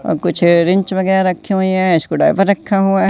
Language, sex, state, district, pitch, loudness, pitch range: Hindi, male, Madhya Pradesh, Katni, 190 Hz, -14 LUFS, 175-195 Hz